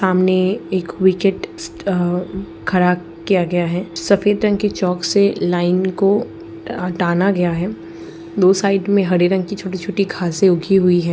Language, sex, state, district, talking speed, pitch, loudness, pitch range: Hindi, female, Bihar, Lakhisarai, 160 wpm, 185 Hz, -17 LUFS, 180-200 Hz